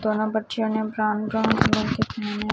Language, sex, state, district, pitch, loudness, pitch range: Hindi, male, Chhattisgarh, Raipur, 215 Hz, -24 LUFS, 215-220 Hz